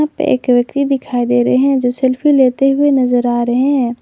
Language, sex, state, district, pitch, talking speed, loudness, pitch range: Hindi, female, Jharkhand, Garhwa, 255 Hz, 210 wpm, -13 LUFS, 245-275 Hz